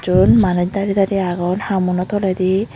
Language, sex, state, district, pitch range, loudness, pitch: Chakma, female, Tripura, Unakoti, 180-200 Hz, -17 LUFS, 190 Hz